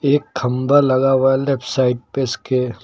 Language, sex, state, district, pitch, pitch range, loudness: Hindi, male, Uttar Pradesh, Lucknow, 135 Hz, 125-140 Hz, -17 LUFS